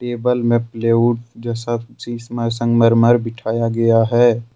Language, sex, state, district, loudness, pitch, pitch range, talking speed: Hindi, male, Jharkhand, Ranchi, -17 LUFS, 115 Hz, 115-120 Hz, 120 wpm